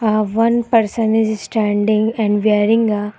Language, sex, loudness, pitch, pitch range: English, female, -16 LUFS, 215 Hz, 210-225 Hz